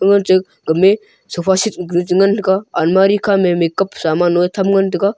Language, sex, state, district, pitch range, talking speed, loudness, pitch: Wancho, male, Arunachal Pradesh, Longding, 175-195 Hz, 150 wpm, -14 LUFS, 190 Hz